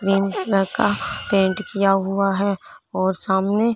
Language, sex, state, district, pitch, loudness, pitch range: Hindi, female, Punjab, Fazilka, 195 Hz, -20 LUFS, 190-200 Hz